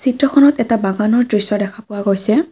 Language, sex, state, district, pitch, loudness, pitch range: Assamese, female, Assam, Kamrup Metropolitan, 220 Hz, -15 LUFS, 205-255 Hz